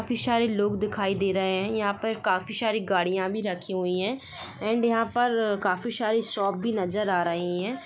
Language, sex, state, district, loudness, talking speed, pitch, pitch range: Hindi, female, Jharkhand, Sahebganj, -26 LUFS, 205 wpm, 210 Hz, 190-225 Hz